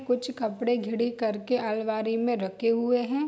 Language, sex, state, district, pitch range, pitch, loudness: Hindi, female, Bihar, Saharsa, 220-245 Hz, 235 Hz, -28 LUFS